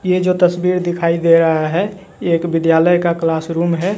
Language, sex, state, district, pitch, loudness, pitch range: Hindi, male, Bihar, West Champaran, 170 Hz, -15 LUFS, 165-180 Hz